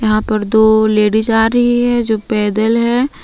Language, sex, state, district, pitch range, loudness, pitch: Hindi, female, Jharkhand, Palamu, 215-235 Hz, -13 LUFS, 220 Hz